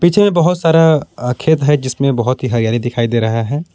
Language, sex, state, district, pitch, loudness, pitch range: Hindi, male, Jharkhand, Palamu, 140 Hz, -14 LUFS, 120-165 Hz